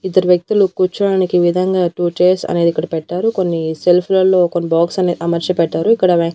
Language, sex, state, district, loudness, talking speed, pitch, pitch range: Telugu, female, Andhra Pradesh, Annamaya, -15 LUFS, 180 wpm, 180 Hz, 170-185 Hz